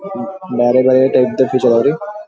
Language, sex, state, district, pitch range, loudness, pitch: Kannada, male, Karnataka, Belgaum, 125-190 Hz, -13 LUFS, 130 Hz